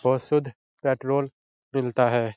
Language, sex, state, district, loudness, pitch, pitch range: Hindi, male, Bihar, Jahanabad, -25 LUFS, 130 Hz, 125-135 Hz